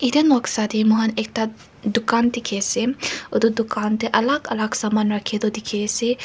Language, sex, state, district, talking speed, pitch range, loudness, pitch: Nagamese, female, Nagaland, Kohima, 155 wpm, 215-240 Hz, -21 LUFS, 225 Hz